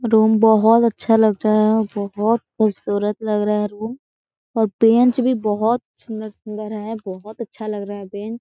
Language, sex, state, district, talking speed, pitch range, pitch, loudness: Hindi, female, Chhattisgarh, Korba, 185 wpm, 210-225 Hz, 215 Hz, -18 LUFS